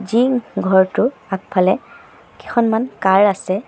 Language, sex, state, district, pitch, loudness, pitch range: Assamese, male, Assam, Sonitpur, 205 Hz, -17 LUFS, 190-235 Hz